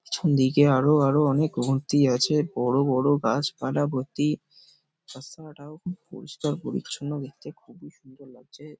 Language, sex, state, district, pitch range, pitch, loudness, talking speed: Bengali, male, West Bengal, Paschim Medinipur, 130-150 Hz, 145 Hz, -24 LUFS, 145 wpm